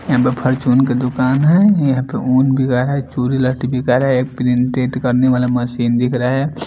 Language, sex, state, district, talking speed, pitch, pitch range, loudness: Hindi, male, Bihar, Katihar, 215 wpm, 130 Hz, 125-130 Hz, -15 LUFS